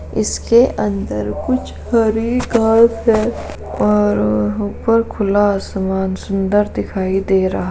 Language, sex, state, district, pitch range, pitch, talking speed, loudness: Hindi, female, Uttar Pradesh, Jalaun, 190-230 Hz, 205 Hz, 115 wpm, -16 LUFS